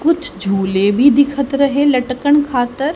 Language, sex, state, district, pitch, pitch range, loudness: Hindi, female, Haryana, Charkhi Dadri, 275 Hz, 245-285 Hz, -14 LUFS